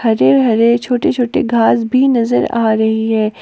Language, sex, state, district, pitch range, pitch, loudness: Hindi, female, Jharkhand, Palamu, 220-245 Hz, 230 Hz, -13 LUFS